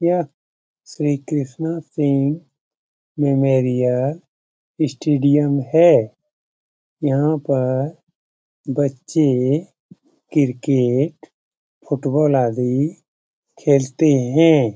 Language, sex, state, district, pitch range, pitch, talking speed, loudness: Hindi, male, Bihar, Jamui, 135-155 Hz, 145 Hz, 60 wpm, -18 LUFS